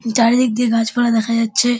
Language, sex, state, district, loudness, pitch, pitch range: Bengali, male, West Bengal, Dakshin Dinajpur, -16 LUFS, 230 Hz, 230-245 Hz